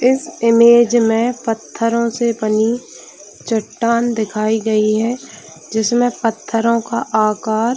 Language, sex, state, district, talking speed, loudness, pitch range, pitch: Hindi, female, Chhattisgarh, Bilaspur, 110 wpm, -16 LUFS, 220-235 Hz, 230 Hz